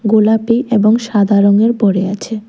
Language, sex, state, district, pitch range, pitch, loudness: Bengali, female, Tripura, West Tripura, 205-225 Hz, 215 Hz, -12 LUFS